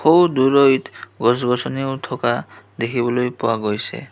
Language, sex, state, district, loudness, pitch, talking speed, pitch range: Assamese, male, Assam, Kamrup Metropolitan, -19 LUFS, 125 Hz, 115 wpm, 120-135 Hz